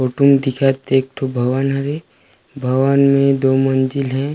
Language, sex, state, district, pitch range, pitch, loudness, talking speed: Chhattisgarhi, male, Chhattisgarh, Rajnandgaon, 130-140 Hz, 135 Hz, -16 LUFS, 180 wpm